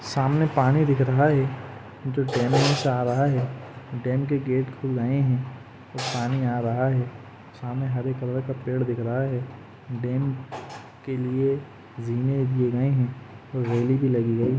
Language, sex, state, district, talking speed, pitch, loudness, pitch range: Hindi, male, Jharkhand, Sahebganj, 175 wpm, 130 Hz, -25 LUFS, 120-135 Hz